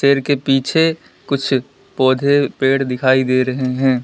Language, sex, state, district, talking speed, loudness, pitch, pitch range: Hindi, male, Uttar Pradesh, Lalitpur, 150 wpm, -16 LUFS, 135 Hz, 130-140 Hz